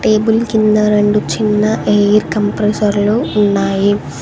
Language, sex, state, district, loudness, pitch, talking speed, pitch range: Telugu, female, Telangana, Mahabubabad, -13 LUFS, 210 Hz, 115 wpm, 205-215 Hz